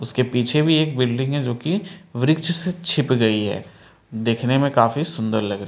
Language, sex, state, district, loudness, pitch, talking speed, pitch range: Hindi, male, Delhi, New Delhi, -20 LUFS, 130 Hz, 210 wpm, 115-155 Hz